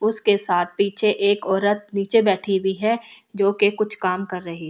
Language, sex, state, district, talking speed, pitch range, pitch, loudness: Hindi, female, Delhi, New Delhi, 205 wpm, 190-210 Hz, 200 Hz, -20 LUFS